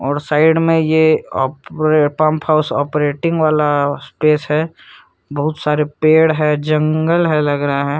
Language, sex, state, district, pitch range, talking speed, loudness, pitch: Hindi, male, Chhattisgarh, Korba, 145-155 Hz, 140 wpm, -15 LUFS, 155 Hz